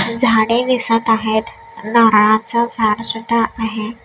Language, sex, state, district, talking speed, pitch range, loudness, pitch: Marathi, female, Maharashtra, Gondia, 105 wpm, 220-235 Hz, -15 LUFS, 225 Hz